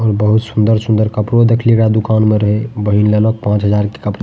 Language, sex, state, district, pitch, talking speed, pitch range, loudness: Maithili, male, Bihar, Madhepura, 110 Hz, 255 wpm, 105-110 Hz, -13 LUFS